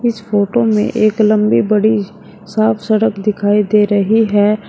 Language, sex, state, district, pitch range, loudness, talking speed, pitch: Hindi, female, Uttar Pradesh, Shamli, 210-220 Hz, -13 LUFS, 155 wpm, 215 Hz